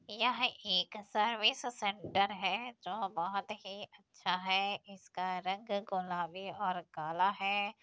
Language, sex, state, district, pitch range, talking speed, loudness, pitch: Hindi, female, Uttar Pradesh, Deoria, 185-210 Hz, 115 wpm, -35 LUFS, 195 Hz